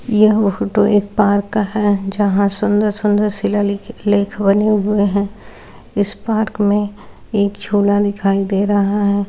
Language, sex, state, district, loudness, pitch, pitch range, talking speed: Hindi, female, Rajasthan, Nagaur, -16 LUFS, 205 Hz, 200-210 Hz, 140 wpm